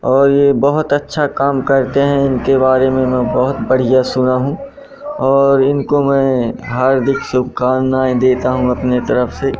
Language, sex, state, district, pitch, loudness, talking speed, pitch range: Hindi, male, Madhya Pradesh, Katni, 135 Hz, -14 LUFS, 155 wpm, 130-140 Hz